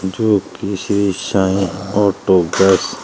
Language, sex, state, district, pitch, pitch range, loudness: Hindi, male, Uttar Pradesh, Shamli, 95 Hz, 95-100 Hz, -16 LUFS